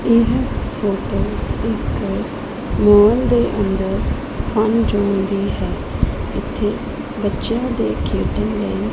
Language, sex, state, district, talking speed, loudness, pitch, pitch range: Punjabi, female, Punjab, Pathankot, 110 wpm, -19 LUFS, 210 Hz, 200-230 Hz